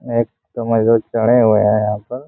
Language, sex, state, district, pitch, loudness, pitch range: Hindi, male, Jharkhand, Jamtara, 115 Hz, -15 LUFS, 110-120 Hz